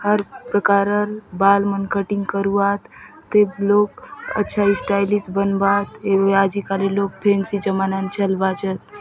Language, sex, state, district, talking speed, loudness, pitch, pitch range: Halbi, female, Chhattisgarh, Bastar, 145 wpm, -19 LUFS, 200 Hz, 195-205 Hz